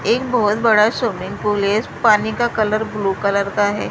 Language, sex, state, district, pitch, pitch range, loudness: Hindi, female, Maharashtra, Mumbai Suburban, 210 Hz, 200-220 Hz, -17 LUFS